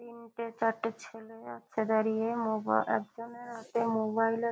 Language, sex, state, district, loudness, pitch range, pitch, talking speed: Bengali, female, West Bengal, Kolkata, -32 LUFS, 220-230 Hz, 225 Hz, 145 wpm